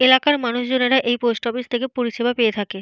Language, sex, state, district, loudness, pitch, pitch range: Bengali, female, Jharkhand, Jamtara, -19 LUFS, 245 Hz, 235-255 Hz